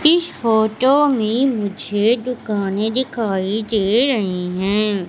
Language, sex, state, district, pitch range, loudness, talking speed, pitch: Hindi, female, Madhya Pradesh, Katni, 205-250 Hz, -18 LUFS, 105 wpm, 220 Hz